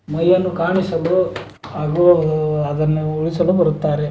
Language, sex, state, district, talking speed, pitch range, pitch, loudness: Kannada, male, Karnataka, Belgaum, 85 wpm, 155-175 Hz, 165 Hz, -17 LUFS